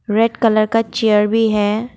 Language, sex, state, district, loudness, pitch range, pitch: Hindi, female, Assam, Kamrup Metropolitan, -15 LUFS, 210-225 Hz, 220 Hz